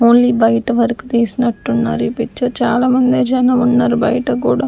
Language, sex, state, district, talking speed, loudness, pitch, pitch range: Telugu, female, Andhra Pradesh, Sri Satya Sai, 140 wpm, -14 LUFS, 240 Hz, 235-250 Hz